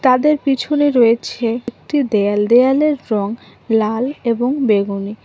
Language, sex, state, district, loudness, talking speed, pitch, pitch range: Bengali, female, West Bengal, Cooch Behar, -16 LUFS, 115 wpm, 240 Hz, 220-270 Hz